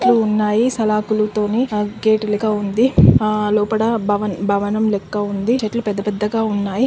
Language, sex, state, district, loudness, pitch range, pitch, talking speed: Telugu, female, Telangana, Karimnagar, -17 LUFS, 210-220 Hz, 215 Hz, 120 wpm